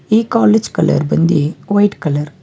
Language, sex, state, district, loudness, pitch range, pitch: Kannada, male, Karnataka, Bangalore, -14 LUFS, 150-215 Hz, 200 Hz